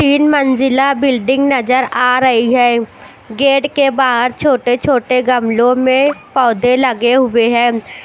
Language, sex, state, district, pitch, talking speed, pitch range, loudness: Hindi, female, Chandigarh, Chandigarh, 255 Hz, 140 wpm, 245-270 Hz, -12 LUFS